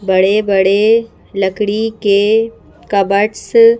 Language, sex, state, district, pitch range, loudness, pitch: Hindi, female, Madhya Pradesh, Bhopal, 195-225 Hz, -13 LUFS, 205 Hz